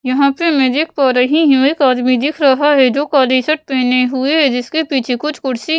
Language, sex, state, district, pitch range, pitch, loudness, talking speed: Hindi, female, Bihar, West Champaran, 255-295 Hz, 275 Hz, -13 LUFS, 240 wpm